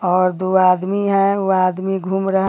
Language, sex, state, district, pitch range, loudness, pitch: Hindi, female, Bihar, Bhagalpur, 185-195 Hz, -17 LUFS, 190 Hz